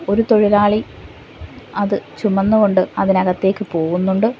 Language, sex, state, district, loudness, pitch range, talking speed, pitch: Malayalam, female, Kerala, Kollam, -16 LUFS, 185-210 Hz, 95 wpm, 200 Hz